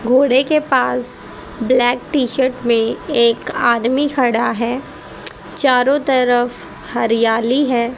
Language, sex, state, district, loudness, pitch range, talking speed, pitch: Hindi, female, Haryana, Jhajjar, -16 LUFS, 230-265 Hz, 105 wpm, 245 Hz